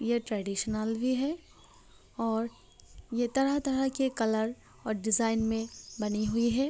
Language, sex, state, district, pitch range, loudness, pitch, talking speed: Hindi, female, Uttar Pradesh, Varanasi, 220-260 Hz, -31 LUFS, 230 Hz, 135 wpm